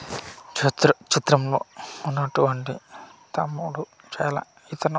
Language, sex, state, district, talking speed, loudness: Telugu, male, Andhra Pradesh, Manyam, 85 wpm, -24 LUFS